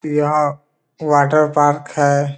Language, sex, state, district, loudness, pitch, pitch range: Hindi, male, Bihar, Muzaffarpur, -16 LUFS, 150 Hz, 145-150 Hz